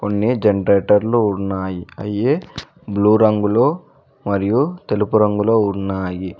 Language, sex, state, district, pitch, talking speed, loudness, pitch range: Telugu, male, Telangana, Mahabubabad, 105 Hz, 95 wpm, -17 LUFS, 100-110 Hz